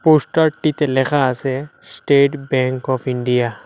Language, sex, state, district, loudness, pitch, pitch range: Bengali, male, Assam, Hailakandi, -17 LUFS, 135 Hz, 130-150 Hz